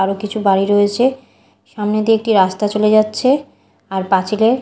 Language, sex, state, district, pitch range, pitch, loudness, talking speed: Bengali, female, Odisha, Malkangiri, 195-225 Hz, 210 Hz, -15 LUFS, 155 wpm